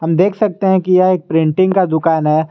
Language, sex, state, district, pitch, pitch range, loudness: Hindi, male, Jharkhand, Garhwa, 180 Hz, 160-190 Hz, -14 LUFS